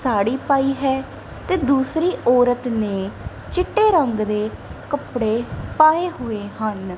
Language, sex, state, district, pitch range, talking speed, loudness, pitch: Punjabi, female, Punjab, Kapurthala, 215-300 Hz, 120 wpm, -20 LUFS, 250 Hz